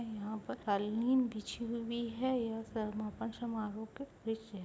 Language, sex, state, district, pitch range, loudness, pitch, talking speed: Hindi, female, Chhattisgarh, Raigarh, 215-235 Hz, -38 LUFS, 225 Hz, 155 wpm